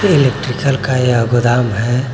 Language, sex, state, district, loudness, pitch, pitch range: Hindi, male, Jharkhand, Garhwa, -14 LUFS, 125 Hz, 120-135 Hz